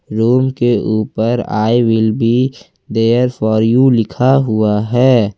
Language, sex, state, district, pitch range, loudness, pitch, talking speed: Hindi, male, Jharkhand, Ranchi, 110-125 Hz, -13 LUFS, 115 Hz, 135 wpm